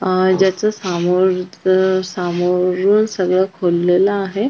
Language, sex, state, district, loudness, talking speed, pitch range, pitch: Marathi, female, Maharashtra, Chandrapur, -16 LUFS, 80 wpm, 180-190 Hz, 185 Hz